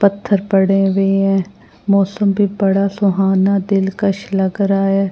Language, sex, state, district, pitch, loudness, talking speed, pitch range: Hindi, female, Delhi, New Delhi, 195 Hz, -15 LUFS, 140 wpm, 195-200 Hz